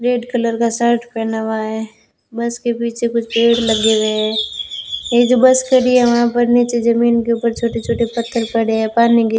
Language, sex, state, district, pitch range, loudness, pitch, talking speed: Hindi, female, Rajasthan, Bikaner, 225-235 Hz, -16 LUFS, 235 Hz, 210 wpm